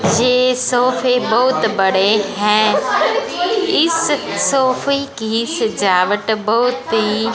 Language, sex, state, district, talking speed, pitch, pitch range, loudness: Hindi, female, Punjab, Fazilka, 90 wpm, 235 Hz, 210-255 Hz, -15 LUFS